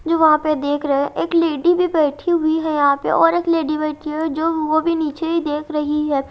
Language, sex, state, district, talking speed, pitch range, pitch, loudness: Hindi, female, Haryana, Jhajjar, 255 wpm, 300-330 Hz, 310 Hz, -18 LUFS